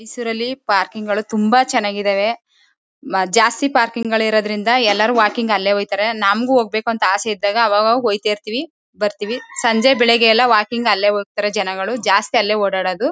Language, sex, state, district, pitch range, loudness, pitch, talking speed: Kannada, female, Karnataka, Mysore, 205-235 Hz, -16 LUFS, 220 Hz, 160 wpm